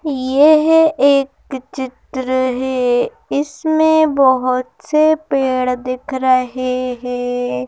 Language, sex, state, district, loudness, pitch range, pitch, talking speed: Hindi, female, Madhya Pradesh, Bhopal, -16 LUFS, 255-290 Hz, 260 Hz, 85 wpm